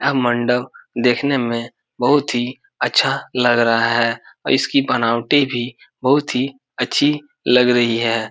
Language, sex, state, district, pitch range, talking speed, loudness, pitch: Hindi, male, Bihar, Supaul, 120-135 Hz, 145 wpm, -18 LUFS, 125 Hz